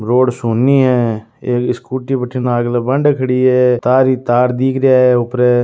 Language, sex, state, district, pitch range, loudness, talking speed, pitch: Marwari, male, Rajasthan, Nagaur, 120-130 Hz, -14 LUFS, 180 wpm, 125 Hz